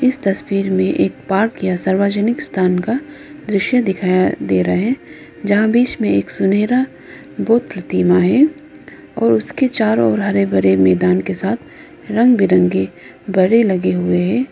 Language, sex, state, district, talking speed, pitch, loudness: Hindi, female, Arunachal Pradesh, Lower Dibang Valley, 150 wpm, 195 Hz, -16 LUFS